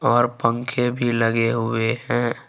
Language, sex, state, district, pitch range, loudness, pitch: Hindi, male, Jharkhand, Ranchi, 115-120 Hz, -21 LUFS, 120 Hz